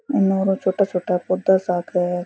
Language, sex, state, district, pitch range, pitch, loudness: Rajasthani, female, Rajasthan, Churu, 180-195 Hz, 185 Hz, -20 LUFS